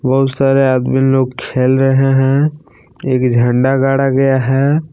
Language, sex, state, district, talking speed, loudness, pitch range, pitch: Hindi, male, Jharkhand, Palamu, 145 wpm, -13 LUFS, 130-135 Hz, 135 Hz